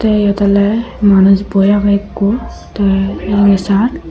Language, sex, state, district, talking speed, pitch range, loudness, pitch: Chakma, female, Tripura, Unakoti, 130 wpm, 200-210 Hz, -12 LUFS, 200 Hz